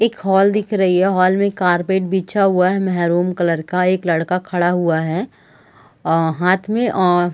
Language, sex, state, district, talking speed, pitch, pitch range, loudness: Hindi, female, Chhattisgarh, Raigarh, 195 wpm, 185 Hz, 175-195 Hz, -17 LUFS